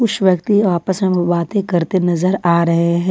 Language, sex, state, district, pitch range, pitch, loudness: Hindi, female, Jharkhand, Ranchi, 170-190 Hz, 180 Hz, -16 LUFS